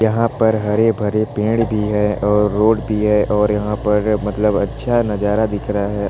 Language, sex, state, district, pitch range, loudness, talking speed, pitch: Hindi, male, Chhattisgarh, Balrampur, 105-110 Hz, -17 LUFS, 195 wpm, 105 Hz